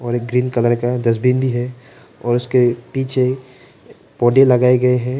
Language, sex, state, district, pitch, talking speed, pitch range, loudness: Hindi, male, Arunachal Pradesh, Papum Pare, 125 Hz, 150 wpm, 120-130 Hz, -16 LUFS